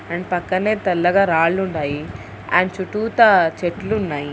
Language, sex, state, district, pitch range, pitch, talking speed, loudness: Telugu, female, Andhra Pradesh, Guntur, 160-190 Hz, 180 Hz, 125 wpm, -18 LUFS